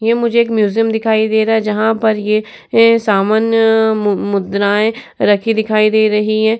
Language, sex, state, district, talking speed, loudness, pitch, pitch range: Hindi, female, Uttar Pradesh, Etah, 165 wpm, -13 LUFS, 220 Hz, 210-225 Hz